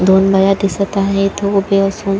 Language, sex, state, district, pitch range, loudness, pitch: Marathi, female, Maharashtra, Chandrapur, 195-200 Hz, -14 LUFS, 195 Hz